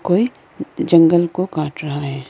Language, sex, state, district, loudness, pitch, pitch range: Hindi, female, Arunachal Pradesh, Lower Dibang Valley, -17 LUFS, 165 Hz, 145-180 Hz